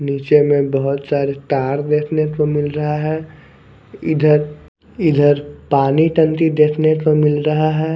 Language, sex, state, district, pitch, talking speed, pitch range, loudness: Hindi, male, Bihar, West Champaran, 150 Hz, 145 wpm, 145-155 Hz, -16 LUFS